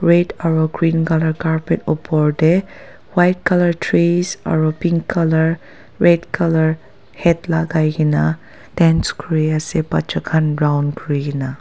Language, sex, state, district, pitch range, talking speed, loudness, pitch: Nagamese, female, Nagaland, Dimapur, 155-170 Hz, 135 wpm, -17 LUFS, 160 Hz